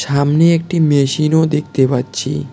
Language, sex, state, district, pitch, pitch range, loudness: Bengali, male, West Bengal, Cooch Behar, 150 Hz, 135-160 Hz, -14 LUFS